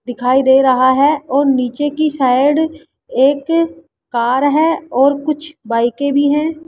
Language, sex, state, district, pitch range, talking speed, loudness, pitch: Hindi, female, Rajasthan, Jaipur, 255-305 Hz, 145 wpm, -14 LUFS, 280 Hz